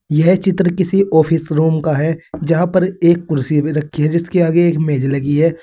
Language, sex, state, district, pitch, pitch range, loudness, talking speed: Hindi, male, Uttar Pradesh, Saharanpur, 165 Hz, 155-175 Hz, -15 LUFS, 215 wpm